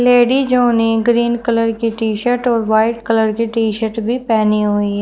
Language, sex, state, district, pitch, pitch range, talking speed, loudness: Hindi, female, Uttar Pradesh, Shamli, 230 Hz, 220-240 Hz, 205 wpm, -15 LUFS